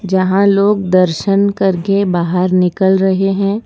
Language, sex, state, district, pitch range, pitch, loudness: Hindi, female, Gujarat, Valsad, 185-200 Hz, 190 Hz, -13 LUFS